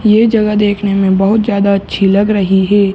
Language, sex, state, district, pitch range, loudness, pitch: Hindi, male, Uttar Pradesh, Gorakhpur, 195-210 Hz, -11 LUFS, 200 Hz